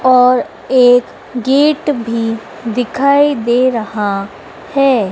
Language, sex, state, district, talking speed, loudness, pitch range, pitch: Hindi, female, Madhya Pradesh, Dhar, 95 wpm, -13 LUFS, 230-270 Hz, 245 Hz